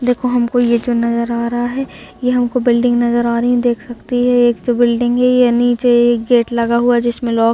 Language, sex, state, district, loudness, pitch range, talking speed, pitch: Hindi, female, Bihar, Gopalganj, -14 LUFS, 235-245 Hz, 255 wpm, 240 Hz